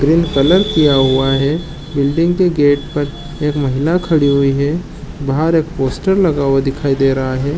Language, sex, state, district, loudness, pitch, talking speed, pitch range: Chhattisgarhi, male, Chhattisgarh, Jashpur, -15 LUFS, 145 Hz, 180 wpm, 135-165 Hz